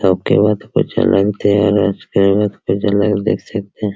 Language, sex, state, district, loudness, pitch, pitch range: Hindi, male, Bihar, Araria, -15 LUFS, 100 Hz, 100-105 Hz